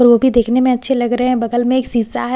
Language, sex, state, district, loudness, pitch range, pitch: Hindi, female, Bihar, Katihar, -15 LUFS, 240-255 Hz, 245 Hz